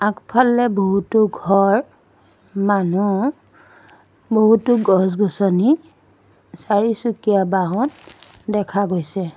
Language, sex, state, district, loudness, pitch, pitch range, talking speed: Assamese, female, Assam, Sonitpur, -18 LUFS, 205 Hz, 195-225 Hz, 65 wpm